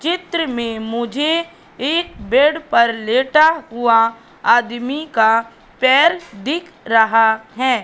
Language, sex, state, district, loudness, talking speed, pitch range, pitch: Hindi, female, Madhya Pradesh, Katni, -16 LUFS, 105 wpm, 230-315 Hz, 250 Hz